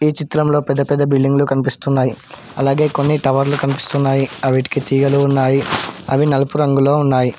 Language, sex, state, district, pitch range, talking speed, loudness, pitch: Telugu, male, Telangana, Hyderabad, 135-145 Hz, 140 wpm, -16 LUFS, 140 Hz